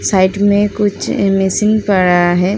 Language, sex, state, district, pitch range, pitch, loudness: Hindi, female, Uttar Pradesh, Muzaffarnagar, 185-205 Hz, 195 Hz, -13 LUFS